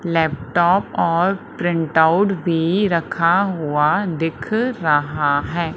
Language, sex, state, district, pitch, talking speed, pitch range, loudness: Hindi, female, Madhya Pradesh, Umaria, 170 Hz, 95 wpm, 160-190 Hz, -18 LUFS